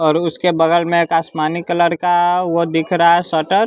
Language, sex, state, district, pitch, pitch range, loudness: Hindi, male, Bihar, West Champaran, 170 Hz, 165-175 Hz, -15 LUFS